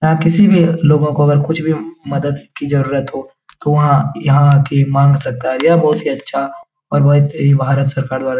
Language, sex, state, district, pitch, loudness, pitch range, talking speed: Hindi, male, Bihar, Jahanabad, 145 Hz, -14 LUFS, 140-160 Hz, 215 wpm